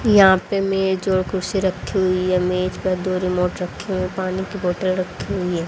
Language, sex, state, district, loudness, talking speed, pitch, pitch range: Hindi, female, Haryana, Rohtak, -20 LUFS, 210 wpm, 185 Hz, 180-190 Hz